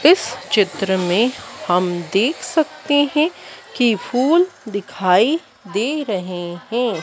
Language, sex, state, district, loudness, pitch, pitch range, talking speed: Hindi, female, Madhya Pradesh, Dhar, -19 LUFS, 225 Hz, 190-285 Hz, 110 wpm